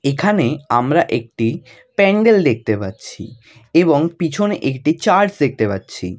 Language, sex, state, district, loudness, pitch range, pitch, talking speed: Bengali, male, West Bengal, Jalpaiguri, -16 LUFS, 115-170 Hz, 140 Hz, 115 wpm